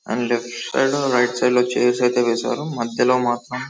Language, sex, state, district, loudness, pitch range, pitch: Telugu, male, Telangana, Karimnagar, -20 LUFS, 120-125 Hz, 125 Hz